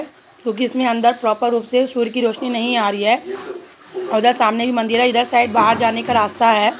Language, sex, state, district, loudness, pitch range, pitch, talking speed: Hindi, female, Uttar Pradesh, Hamirpur, -17 LUFS, 230-250 Hz, 240 Hz, 210 wpm